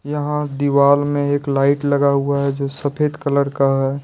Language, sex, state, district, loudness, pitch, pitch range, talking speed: Hindi, male, Jharkhand, Deoghar, -18 LUFS, 140 Hz, 140-145 Hz, 195 wpm